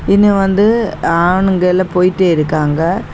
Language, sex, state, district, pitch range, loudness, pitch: Tamil, female, Tamil Nadu, Kanyakumari, 170-195 Hz, -13 LUFS, 185 Hz